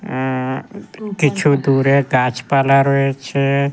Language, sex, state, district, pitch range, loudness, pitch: Bengali, male, West Bengal, Jhargram, 130-140 Hz, -16 LUFS, 135 Hz